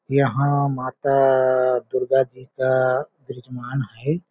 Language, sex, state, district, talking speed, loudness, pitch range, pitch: Hindi, male, Chhattisgarh, Balrampur, 95 wpm, -21 LUFS, 130-140 Hz, 130 Hz